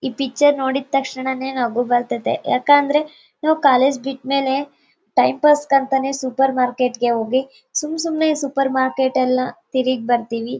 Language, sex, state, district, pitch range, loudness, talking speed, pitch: Kannada, female, Karnataka, Bellary, 255-280 Hz, -19 LUFS, 135 wpm, 265 Hz